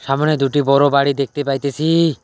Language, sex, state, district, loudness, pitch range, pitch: Bengali, male, West Bengal, Cooch Behar, -16 LUFS, 140-150 Hz, 140 Hz